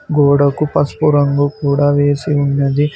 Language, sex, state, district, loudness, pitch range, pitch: Telugu, male, Telangana, Mahabubabad, -14 LUFS, 140-145 Hz, 145 Hz